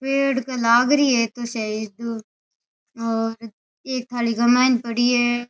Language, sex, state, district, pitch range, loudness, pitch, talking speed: Rajasthani, female, Rajasthan, Nagaur, 230-255 Hz, -21 LUFS, 240 Hz, 75 wpm